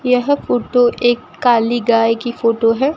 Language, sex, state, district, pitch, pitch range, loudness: Hindi, female, Rajasthan, Bikaner, 240 Hz, 230-250 Hz, -15 LUFS